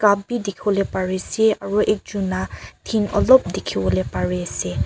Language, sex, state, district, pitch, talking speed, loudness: Nagamese, female, Nagaland, Kohima, 200 Hz, 160 wpm, -20 LUFS